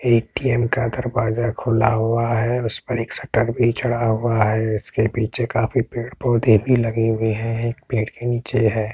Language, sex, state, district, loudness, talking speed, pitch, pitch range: Hindi, male, Uttar Pradesh, Etah, -20 LUFS, 190 wpm, 115 Hz, 110-120 Hz